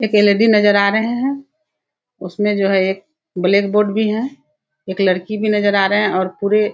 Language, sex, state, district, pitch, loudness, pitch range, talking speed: Hindi, female, Bihar, Kishanganj, 205 Hz, -16 LUFS, 195-220 Hz, 205 wpm